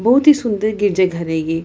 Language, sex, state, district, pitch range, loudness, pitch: Hindi, female, Bihar, Lakhisarai, 165-230 Hz, -16 LUFS, 205 Hz